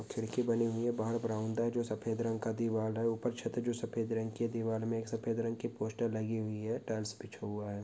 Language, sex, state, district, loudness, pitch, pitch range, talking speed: Hindi, male, Uttar Pradesh, Etah, -36 LUFS, 115 Hz, 110-115 Hz, 270 wpm